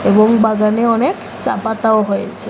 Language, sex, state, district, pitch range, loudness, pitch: Bengali, female, Assam, Hailakandi, 215-230 Hz, -15 LUFS, 220 Hz